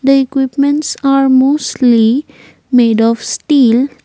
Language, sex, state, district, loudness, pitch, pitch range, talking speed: English, female, Assam, Kamrup Metropolitan, -11 LUFS, 265 Hz, 245-280 Hz, 105 wpm